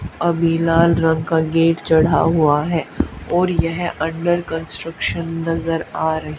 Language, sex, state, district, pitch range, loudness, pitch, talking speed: Hindi, female, Haryana, Charkhi Dadri, 160-170 Hz, -18 LUFS, 165 Hz, 140 wpm